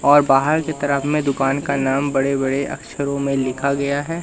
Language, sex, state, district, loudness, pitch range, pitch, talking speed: Hindi, male, Madhya Pradesh, Katni, -19 LUFS, 135-145 Hz, 140 Hz, 210 wpm